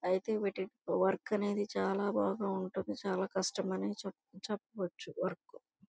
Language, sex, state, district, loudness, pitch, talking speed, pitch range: Telugu, female, Andhra Pradesh, Guntur, -36 LUFS, 195 Hz, 130 wpm, 185-205 Hz